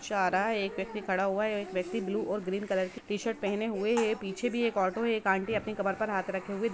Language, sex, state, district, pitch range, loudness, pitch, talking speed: Hindi, female, Jharkhand, Jamtara, 190-220 Hz, -31 LUFS, 200 Hz, 285 wpm